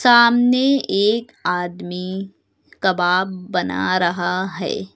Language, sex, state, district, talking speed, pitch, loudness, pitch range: Hindi, female, Uttar Pradesh, Lucknow, 85 wpm, 190 Hz, -19 LUFS, 180-230 Hz